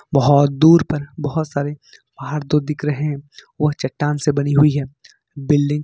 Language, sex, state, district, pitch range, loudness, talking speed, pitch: Hindi, male, Jharkhand, Ranchi, 145-150 Hz, -18 LUFS, 175 wpm, 145 Hz